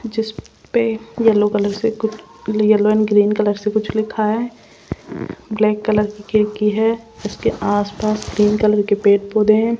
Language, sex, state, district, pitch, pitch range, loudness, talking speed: Hindi, female, Rajasthan, Jaipur, 215 Hz, 210-220 Hz, -17 LUFS, 160 wpm